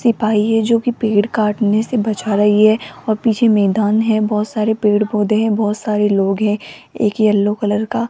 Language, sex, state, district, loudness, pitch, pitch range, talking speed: Hindi, female, Rajasthan, Jaipur, -16 LUFS, 215 Hz, 210-220 Hz, 190 wpm